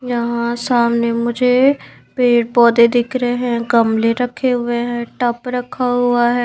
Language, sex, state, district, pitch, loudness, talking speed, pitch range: Hindi, female, Maharashtra, Mumbai Suburban, 240 Hz, -16 LUFS, 150 wpm, 235-250 Hz